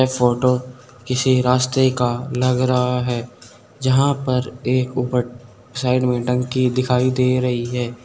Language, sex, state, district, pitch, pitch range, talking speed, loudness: Hindi, male, Uttar Pradesh, Saharanpur, 125 Hz, 125-130 Hz, 135 wpm, -19 LUFS